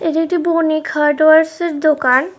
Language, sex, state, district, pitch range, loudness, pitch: Bengali, female, Tripura, West Tripura, 305-330 Hz, -14 LUFS, 315 Hz